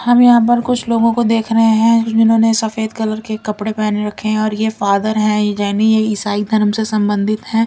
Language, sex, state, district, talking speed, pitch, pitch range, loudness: Hindi, female, Delhi, New Delhi, 220 wpm, 220 Hz, 210-225 Hz, -15 LUFS